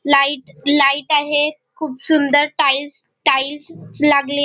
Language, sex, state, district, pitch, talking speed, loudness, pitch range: Marathi, female, Maharashtra, Nagpur, 290 Hz, 110 wpm, -15 LUFS, 280-295 Hz